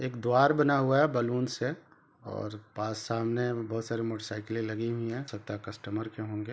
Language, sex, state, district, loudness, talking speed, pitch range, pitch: Hindi, male, Chhattisgarh, Rajnandgaon, -31 LUFS, 190 wpm, 110-125 Hz, 115 Hz